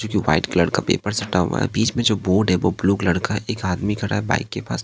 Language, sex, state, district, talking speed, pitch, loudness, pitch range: Hindi, male, Bihar, Katihar, 310 wpm, 105 Hz, -20 LUFS, 95-110 Hz